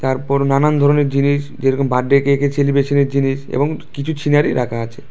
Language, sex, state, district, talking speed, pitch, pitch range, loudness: Bengali, male, Tripura, West Tripura, 165 wpm, 140 Hz, 135-145 Hz, -16 LUFS